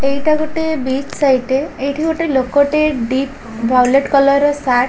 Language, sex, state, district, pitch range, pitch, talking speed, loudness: Odia, female, Odisha, Khordha, 260-295 Hz, 275 Hz, 185 wpm, -15 LUFS